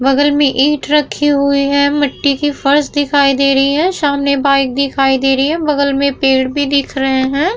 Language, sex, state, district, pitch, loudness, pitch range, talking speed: Hindi, female, Bihar, Vaishali, 280 Hz, -13 LUFS, 275-290 Hz, 240 wpm